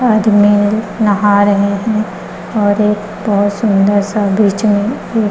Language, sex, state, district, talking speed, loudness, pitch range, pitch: Hindi, female, Uttar Pradesh, Gorakhpur, 145 wpm, -13 LUFS, 205-215 Hz, 205 Hz